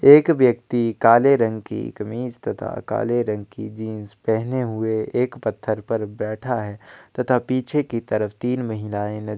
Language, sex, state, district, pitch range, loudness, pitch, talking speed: Hindi, male, Chhattisgarh, Kabirdham, 110-125 Hz, -22 LUFS, 115 Hz, 165 wpm